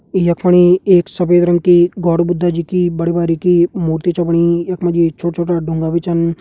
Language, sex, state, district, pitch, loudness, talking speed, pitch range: Hindi, male, Uttarakhand, Tehri Garhwal, 175 Hz, -14 LUFS, 215 wpm, 170-175 Hz